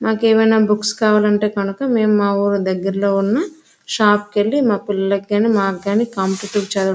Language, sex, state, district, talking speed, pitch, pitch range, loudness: Telugu, female, Andhra Pradesh, Srikakulam, 155 wpm, 205 Hz, 200-220 Hz, -17 LUFS